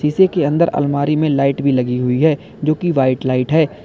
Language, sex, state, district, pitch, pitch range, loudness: Hindi, male, Uttar Pradesh, Lalitpur, 145 Hz, 135-155 Hz, -16 LUFS